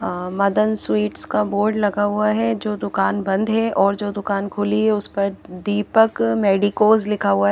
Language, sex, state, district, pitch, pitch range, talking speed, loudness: Hindi, female, Haryana, Charkhi Dadri, 205 Hz, 195-215 Hz, 185 wpm, -19 LUFS